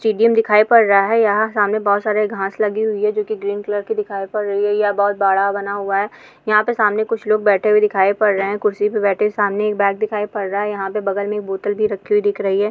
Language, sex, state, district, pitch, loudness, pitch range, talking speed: Hindi, female, Goa, North and South Goa, 210 Hz, -17 LUFS, 200-215 Hz, 285 wpm